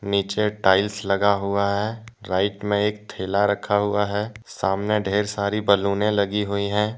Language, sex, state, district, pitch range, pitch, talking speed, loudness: Hindi, male, Jharkhand, Deoghar, 100-105 Hz, 100 Hz, 170 wpm, -22 LUFS